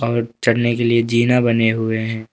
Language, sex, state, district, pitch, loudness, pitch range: Hindi, male, Uttar Pradesh, Lucknow, 115 Hz, -17 LUFS, 115-120 Hz